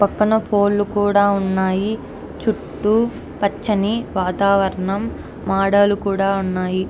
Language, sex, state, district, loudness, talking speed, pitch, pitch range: Telugu, female, Andhra Pradesh, Anantapur, -19 LUFS, 80 wpm, 200 Hz, 195-210 Hz